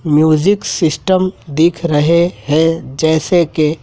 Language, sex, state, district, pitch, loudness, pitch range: Hindi, male, Madhya Pradesh, Dhar, 160 Hz, -14 LUFS, 155-175 Hz